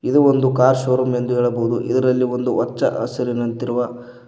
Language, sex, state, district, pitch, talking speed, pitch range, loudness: Kannada, male, Karnataka, Koppal, 125 Hz, 140 wpm, 120-130 Hz, -19 LUFS